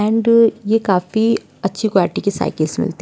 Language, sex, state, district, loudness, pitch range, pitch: Hindi, female, Uttar Pradesh, Jyotiba Phule Nagar, -17 LUFS, 190-225 Hz, 210 Hz